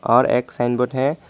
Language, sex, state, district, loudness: Hindi, male, Tripura, Dhalai, -20 LUFS